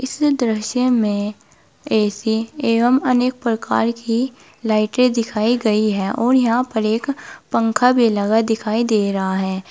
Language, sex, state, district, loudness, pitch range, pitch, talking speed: Hindi, female, Uttar Pradesh, Saharanpur, -18 LUFS, 215-250 Hz, 230 Hz, 140 wpm